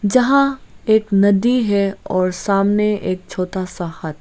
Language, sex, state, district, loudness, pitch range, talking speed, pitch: Hindi, female, Arunachal Pradesh, Lower Dibang Valley, -17 LUFS, 185-220 Hz, 155 wpm, 200 Hz